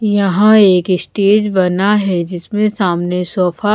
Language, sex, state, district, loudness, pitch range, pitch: Hindi, female, Bihar, Patna, -13 LUFS, 180-210 Hz, 195 Hz